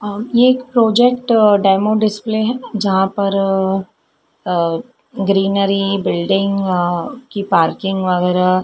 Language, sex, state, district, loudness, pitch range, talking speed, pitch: Hindi, female, Madhya Pradesh, Dhar, -16 LUFS, 190-220 Hz, 105 wpm, 195 Hz